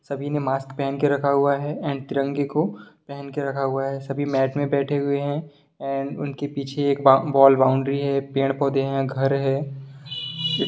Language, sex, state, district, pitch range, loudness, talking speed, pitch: Hindi, male, Bihar, Sitamarhi, 135-145 Hz, -22 LUFS, 190 wpm, 140 Hz